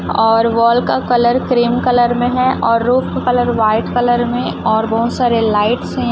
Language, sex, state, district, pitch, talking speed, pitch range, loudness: Hindi, female, Chhattisgarh, Raipur, 240 Hz, 215 wpm, 230-245 Hz, -14 LUFS